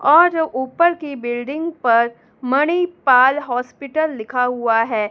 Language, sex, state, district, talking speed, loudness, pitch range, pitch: Hindi, female, Delhi, New Delhi, 120 wpm, -18 LUFS, 240-315 Hz, 260 Hz